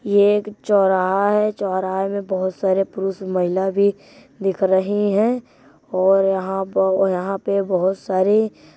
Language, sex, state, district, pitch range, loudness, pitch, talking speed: Hindi, female, Uttar Pradesh, Jyotiba Phule Nagar, 190-205 Hz, -19 LUFS, 195 Hz, 155 wpm